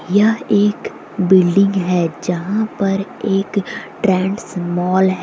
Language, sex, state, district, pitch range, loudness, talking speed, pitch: Hindi, female, Jharkhand, Deoghar, 185-205 Hz, -17 LUFS, 115 wpm, 195 Hz